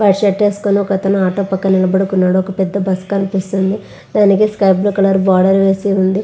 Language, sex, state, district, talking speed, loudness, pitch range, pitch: Telugu, female, Andhra Pradesh, Visakhapatnam, 185 wpm, -14 LUFS, 190-200 Hz, 195 Hz